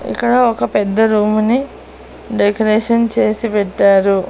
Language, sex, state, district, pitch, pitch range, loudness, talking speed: Telugu, female, Andhra Pradesh, Annamaya, 215 Hz, 205-230 Hz, -14 LUFS, 110 wpm